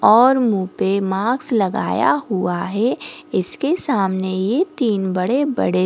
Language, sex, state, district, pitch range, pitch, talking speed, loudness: Hindi, female, Goa, North and South Goa, 190-260 Hz, 210 Hz, 135 wpm, -19 LUFS